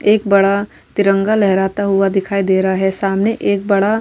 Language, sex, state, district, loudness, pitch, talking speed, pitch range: Hindi, female, Goa, North and South Goa, -15 LUFS, 195 Hz, 195 wpm, 195-205 Hz